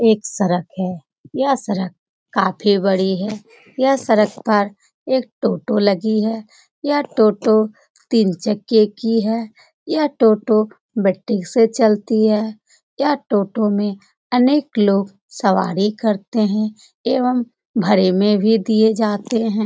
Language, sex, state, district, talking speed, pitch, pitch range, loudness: Hindi, male, Bihar, Jamui, 130 wpm, 215 Hz, 205-235 Hz, -18 LUFS